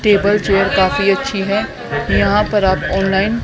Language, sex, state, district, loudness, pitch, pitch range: Hindi, female, Haryana, Charkhi Dadri, -15 LUFS, 195 Hz, 190-210 Hz